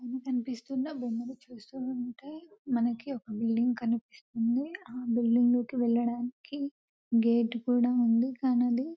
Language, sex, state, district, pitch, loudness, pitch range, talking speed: Telugu, female, Telangana, Nalgonda, 245 Hz, -30 LUFS, 235-260 Hz, 125 wpm